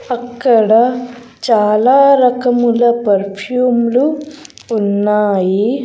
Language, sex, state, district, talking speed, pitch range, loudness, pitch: Telugu, female, Andhra Pradesh, Sri Satya Sai, 60 wpm, 215-250 Hz, -13 LUFS, 240 Hz